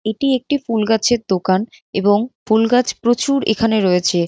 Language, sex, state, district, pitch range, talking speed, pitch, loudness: Bengali, female, West Bengal, North 24 Parganas, 205-240 Hz, 155 wpm, 220 Hz, -17 LUFS